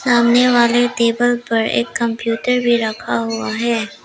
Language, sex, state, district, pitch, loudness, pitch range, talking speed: Hindi, female, Arunachal Pradesh, Lower Dibang Valley, 235 Hz, -16 LUFS, 220-240 Hz, 150 wpm